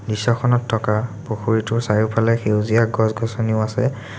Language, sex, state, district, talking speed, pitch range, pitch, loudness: Assamese, male, Assam, Sonitpur, 100 wpm, 110-115 Hz, 110 Hz, -20 LUFS